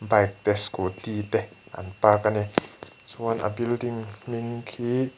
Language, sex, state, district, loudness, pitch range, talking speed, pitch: Mizo, male, Mizoram, Aizawl, -26 LUFS, 105-120 Hz, 150 wpm, 110 Hz